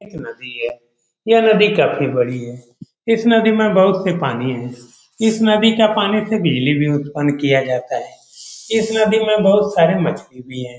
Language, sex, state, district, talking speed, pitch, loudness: Hindi, male, Bihar, Saran, 190 wpm, 160 Hz, -16 LUFS